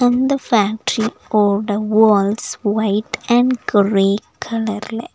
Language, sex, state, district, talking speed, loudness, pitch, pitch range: Tamil, female, Tamil Nadu, Nilgiris, 95 wpm, -17 LUFS, 215 Hz, 205-235 Hz